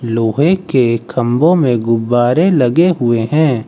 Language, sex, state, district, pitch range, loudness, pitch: Hindi, male, Uttar Pradesh, Lucknow, 115-160 Hz, -13 LUFS, 125 Hz